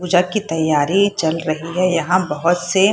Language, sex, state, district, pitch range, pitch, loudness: Hindi, female, Bihar, Purnia, 160-185 Hz, 175 Hz, -17 LUFS